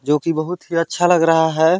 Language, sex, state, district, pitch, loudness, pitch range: Chhattisgarhi, male, Chhattisgarh, Balrampur, 165 Hz, -17 LUFS, 160-175 Hz